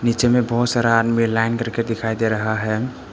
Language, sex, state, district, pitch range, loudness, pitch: Hindi, male, Arunachal Pradesh, Papum Pare, 110-120 Hz, -19 LUFS, 115 Hz